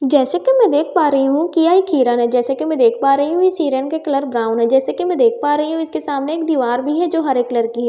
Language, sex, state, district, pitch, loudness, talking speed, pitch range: Hindi, female, Bihar, Katihar, 290 Hz, -16 LUFS, 325 wpm, 265-325 Hz